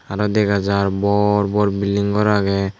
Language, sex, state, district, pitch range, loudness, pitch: Chakma, male, Tripura, Unakoti, 100-105 Hz, -18 LUFS, 100 Hz